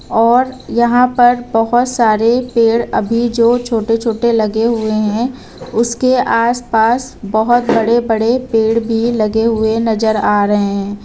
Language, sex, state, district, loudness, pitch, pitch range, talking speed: Hindi, female, Uttar Pradesh, Lucknow, -14 LUFS, 230 Hz, 220-240 Hz, 140 wpm